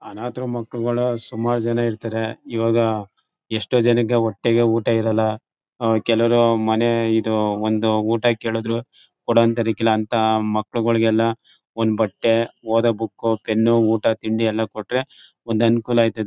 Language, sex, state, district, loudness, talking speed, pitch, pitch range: Kannada, male, Karnataka, Mysore, -20 LUFS, 125 wpm, 115 Hz, 110-115 Hz